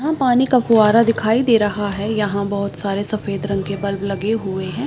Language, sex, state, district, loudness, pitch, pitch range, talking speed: Hindi, female, Bihar, Saharsa, -18 LUFS, 205 Hz, 200-225 Hz, 220 wpm